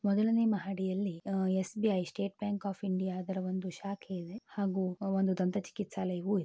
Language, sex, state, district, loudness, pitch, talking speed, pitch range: Kannada, female, Karnataka, Shimoga, -34 LUFS, 195 Hz, 160 wpm, 185-200 Hz